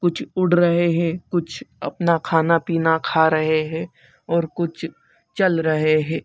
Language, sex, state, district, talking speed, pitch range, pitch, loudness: Hindi, male, Bihar, Begusarai, 145 wpm, 160-175 Hz, 165 Hz, -20 LUFS